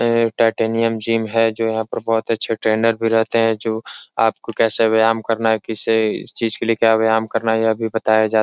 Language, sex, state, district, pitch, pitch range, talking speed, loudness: Hindi, male, Uttar Pradesh, Etah, 115 Hz, 110-115 Hz, 225 wpm, -18 LUFS